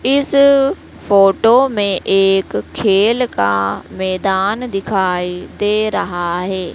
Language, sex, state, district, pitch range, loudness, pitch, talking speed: Hindi, female, Madhya Pradesh, Dhar, 185-225 Hz, -15 LUFS, 195 Hz, 100 wpm